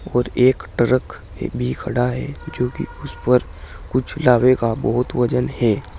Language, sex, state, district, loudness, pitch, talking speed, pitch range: Hindi, male, Uttar Pradesh, Saharanpur, -20 LUFS, 120 Hz, 170 wpm, 100-125 Hz